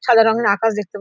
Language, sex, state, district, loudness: Bengali, female, West Bengal, Dakshin Dinajpur, -16 LUFS